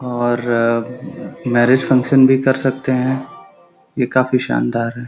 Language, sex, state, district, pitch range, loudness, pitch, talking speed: Hindi, male, Uttar Pradesh, Gorakhpur, 115-130 Hz, -16 LUFS, 125 Hz, 130 wpm